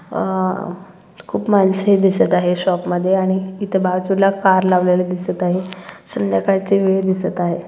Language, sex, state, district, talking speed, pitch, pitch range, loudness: Marathi, female, Maharashtra, Solapur, 140 wpm, 185 Hz, 180-195 Hz, -17 LUFS